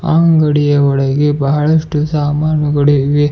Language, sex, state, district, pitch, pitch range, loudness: Kannada, male, Karnataka, Bidar, 150 Hz, 145-155 Hz, -13 LUFS